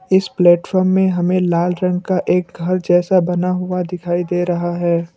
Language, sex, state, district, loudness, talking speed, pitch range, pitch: Hindi, male, Assam, Kamrup Metropolitan, -17 LUFS, 185 wpm, 175-185 Hz, 180 Hz